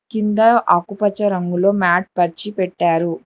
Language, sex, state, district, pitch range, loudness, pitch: Telugu, female, Telangana, Hyderabad, 175-210 Hz, -17 LUFS, 190 Hz